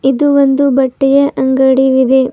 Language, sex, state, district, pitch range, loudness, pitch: Kannada, female, Karnataka, Bidar, 265-280 Hz, -11 LUFS, 265 Hz